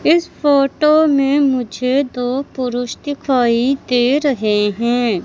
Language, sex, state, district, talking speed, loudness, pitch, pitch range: Hindi, female, Madhya Pradesh, Katni, 115 wpm, -16 LUFS, 260 Hz, 245-285 Hz